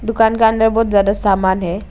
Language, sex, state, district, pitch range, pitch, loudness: Hindi, female, Arunachal Pradesh, Lower Dibang Valley, 195-225 Hz, 210 Hz, -14 LUFS